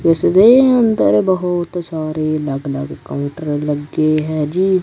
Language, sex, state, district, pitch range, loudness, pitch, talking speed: Punjabi, male, Punjab, Kapurthala, 150-180 Hz, -16 LUFS, 155 Hz, 125 wpm